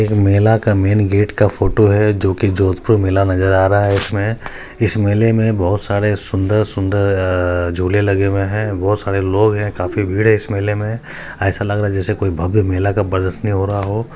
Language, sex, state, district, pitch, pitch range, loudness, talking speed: Maithili, male, Bihar, Supaul, 100 Hz, 95-105 Hz, -16 LUFS, 200 wpm